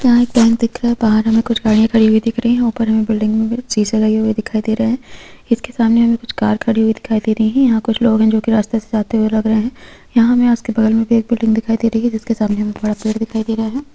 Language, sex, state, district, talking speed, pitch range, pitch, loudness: Hindi, female, Chhattisgarh, Korba, 305 wpm, 220-235 Hz, 225 Hz, -15 LUFS